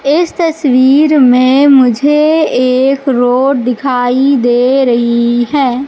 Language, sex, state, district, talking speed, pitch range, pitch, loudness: Hindi, female, Madhya Pradesh, Katni, 100 wpm, 250-280 Hz, 265 Hz, -9 LUFS